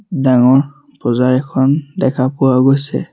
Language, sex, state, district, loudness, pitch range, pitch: Assamese, male, Assam, Sonitpur, -14 LUFS, 130-140 Hz, 135 Hz